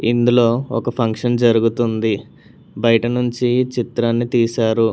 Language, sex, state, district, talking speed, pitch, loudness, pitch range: Telugu, male, Telangana, Hyderabad, 85 wpm, 120 Hz, -17 LUFS, 115-120 Hz